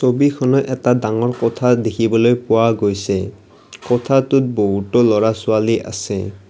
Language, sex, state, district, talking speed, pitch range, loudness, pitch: Assamese, male, Assam, Kamrup Metropolitan, 110 wpm, 105-125 Hz, -16 LUFS, 115 Hz